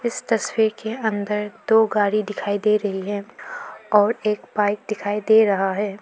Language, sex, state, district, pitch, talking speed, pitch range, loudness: Hindi, female, Arunachal Pradesh, Lower Dibang Valley, 210 Hz, 170 wpm, 205-220 Hz, -21 LUFS